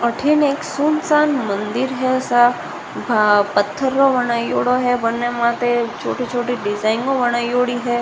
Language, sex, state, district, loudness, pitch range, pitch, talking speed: Rajasthani, female, Rajasthan, Nagaur, -18 LUFS, 235-260 Hz, 245 Hz, 135 wpm